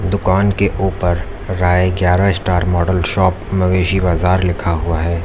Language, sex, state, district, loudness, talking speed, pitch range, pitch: Hindi, male, Uttar Pradesh, Lalitpur, -16 LUFS, 150 wpm, 90-95 Hz, 90 Hz